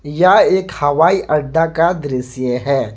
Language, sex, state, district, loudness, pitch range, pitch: Hindi, male, Jharkhand, Garhwa, -15 LUFS, 130-165 Hz, 145 Hz